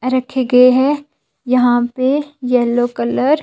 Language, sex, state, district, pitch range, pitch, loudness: Hindi, female, Himachal Pradesh, Shimla, 245-270 Hz, 255 Hz, -15 LUFS